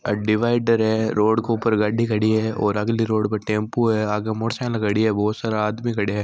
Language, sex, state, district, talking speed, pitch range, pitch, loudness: Marwari, male, Rajasthan, Nagaur, 230 wpm, 105-115 Hz, 110 Hz, -21 LUFS